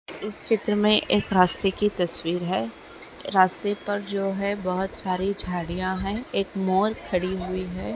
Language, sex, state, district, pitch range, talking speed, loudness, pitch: Hindi, female, Maharashtra, Chandrapur, 185-205 Hz, 160 wpm, -24 LUFS, 190 Hz